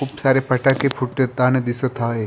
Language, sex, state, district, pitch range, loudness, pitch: Marathi, male, Maharashtra, Pune, 125-135 Hz, -19 LUFS, 130 Hz